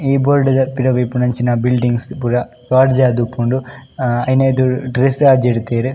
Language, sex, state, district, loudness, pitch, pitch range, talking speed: Tulu, male, Karnataka, Dakshina Kannada, -15 LUFS, 130 Hz, 125-130 Hz, 140 wpm